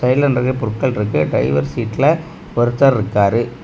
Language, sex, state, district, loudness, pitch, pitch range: Tamil, male, Tamil Nadu, Kanyakumari, -17 LUFS, 120 Hz, 110-135 Hz